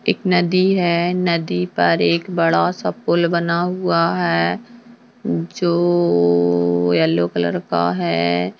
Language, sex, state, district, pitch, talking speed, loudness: Hindi, female, Uttarakhand, Tehri Garhwal, 165 Hz, 120 wpm, -18 LUFS